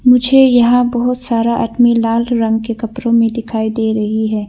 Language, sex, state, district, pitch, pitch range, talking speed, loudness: Hindi, female, Arunachal Pradesh, Longding, 230 Hz, 225-245 Hz, 185 wpm, -13 LUFS